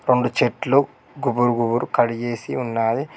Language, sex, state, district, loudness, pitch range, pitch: Telugu, male, Telangana, Mahabubabad, -21 LUFS, 120-135 Hz, 125 Hz